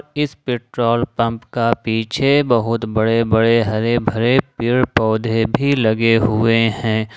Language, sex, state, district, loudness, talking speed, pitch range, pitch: Hindi, male, Jharkhand, Ranchi, -17 LUFS, 140 wpm, 110-125 Hz, 115 Hz